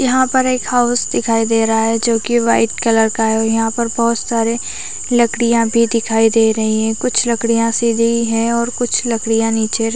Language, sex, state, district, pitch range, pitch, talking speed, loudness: Hindi, female, Chhattisgarh, Raigarh, 225-235 Hz, 230 Hz, 205 wpm, -15 LUFS